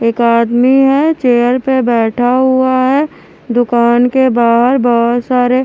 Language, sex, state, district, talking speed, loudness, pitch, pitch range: Hindi, female, Haryana, Charkhi Dadri, 140 wpm, -11 LUFS, 245 Hz, 235-260 Hz